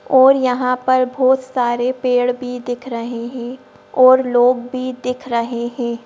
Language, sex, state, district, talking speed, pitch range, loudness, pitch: Hindi, female, Madhya Pradesh, Bhopal, 160 wpm, 245-255 Hz, -17 LUFS, 250 Hz